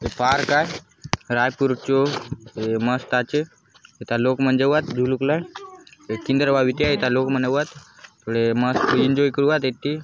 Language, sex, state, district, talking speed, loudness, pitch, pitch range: Halbi, male, Chhattisgarh, Bastar, 180 wpm, -21 LUFS, 135 Hz, 125-145 Hz